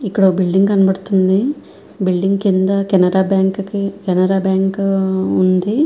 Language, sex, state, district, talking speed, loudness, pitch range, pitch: Telugu, female, Andhra Pradesh, Visakhapatnam, 110 wpm, -15 LUFS, 190-195 Hz, 195 Hz